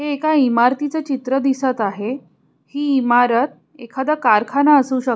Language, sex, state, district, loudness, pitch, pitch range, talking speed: Marathi, female, Maharashtra, Pune, -17 LUFS, 265 Hz, 245-290 Hz, 140 wpm